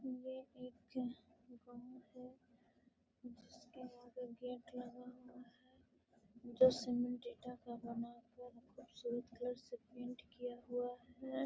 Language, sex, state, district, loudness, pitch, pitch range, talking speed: Hindi, female, Bihar, Gaya, -44 LUFS, 245 Hz, 240-250 Hz, 105 wpm